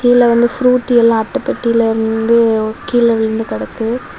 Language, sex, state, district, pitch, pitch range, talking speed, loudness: Tamil, female, Tamil Nadu, Kanyakumari, 235 Hz, 225-245 Hz, 130 wpm, -13 LUFS